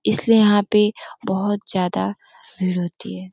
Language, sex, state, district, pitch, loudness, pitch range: Hindi, female, Uttar Pradesh, Gorakhpur, 195 Hz, -19 LUFS, 175-210 Hz